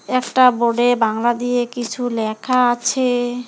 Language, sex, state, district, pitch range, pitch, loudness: Bengali, female, West Bengal, Alipurduar, 240-250 Hz, 245 Hz, -18 LUFS